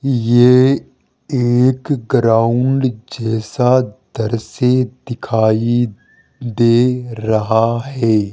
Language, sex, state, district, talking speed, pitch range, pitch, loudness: Hindi, male, Rajasthan, Jaipur, 65 wpm, 110-125 Hz, 120 Hz, -15 LUFS